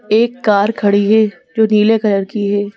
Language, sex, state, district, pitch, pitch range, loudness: Hindi, female, Madhya Pradesh, Bhopal, 210 Hz, 205-220 Hz, -14 LUFS